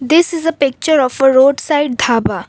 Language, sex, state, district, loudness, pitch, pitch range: English, female, Assam, Kamrup Metropolitan, -13 LUFS, 280 Hz, 260-315 Hz